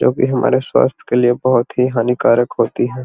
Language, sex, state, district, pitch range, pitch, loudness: Magahi, male, Bihar, Gaya, 120-125 Hz, 125 Hz, -15 LUFS